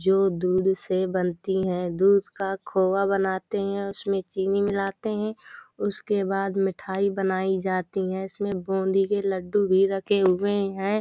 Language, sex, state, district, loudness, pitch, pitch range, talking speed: Hindi, female, Uttar Pradesh, Hamirpur, -25 LUFS, 195 Hz, 190-200 Hz, 155 wpm